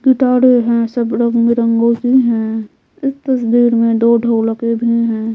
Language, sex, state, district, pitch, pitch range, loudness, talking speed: Hindi, female, Bihar, Patna, 235 Hz, 230-245 Hz, -14 LUFS, 155 wpm